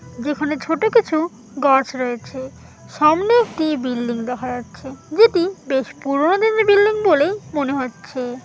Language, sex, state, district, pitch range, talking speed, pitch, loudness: Bengali, female, West Bengal, Malda, 255-355 Hz, 130 wpm, 290 Hz, -18 LUFS